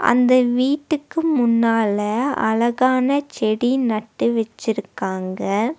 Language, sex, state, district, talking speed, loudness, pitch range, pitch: Tamil, female, Tamil Nadu, Nilgiris, 75 wpm, -19 LUFS, 220-260 Hz, 235 Hz